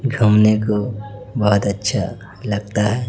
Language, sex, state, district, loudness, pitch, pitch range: Hindi, male, Chhattisgarh, Raipur, -18 LUFS, 105 Hz, 105-110 Hz